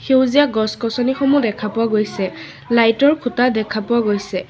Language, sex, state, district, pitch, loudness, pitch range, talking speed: Assamese, female, Assam, Sonitpur, 230 Hz, -17 LUFS, 215-255 Hz, 145 wpm